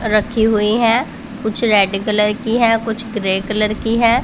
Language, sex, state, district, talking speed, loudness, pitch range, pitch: Hindi, female, Punjab, Pathankot, 185 wpm, -15 LUFS, 210-230 Hz, 220 Hz